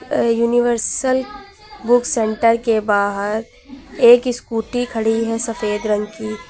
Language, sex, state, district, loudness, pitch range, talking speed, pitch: Hindi, female, Uttar Pradesh, Lucknow, -18 LUFS, 215-245 Hz, 120 wpm, 230 Hz